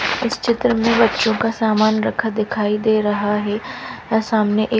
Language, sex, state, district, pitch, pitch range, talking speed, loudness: Hindi, female, Punjab, Fazilka, 220 Hz, 210-230 Hz, 185 wpm, -18 LUFS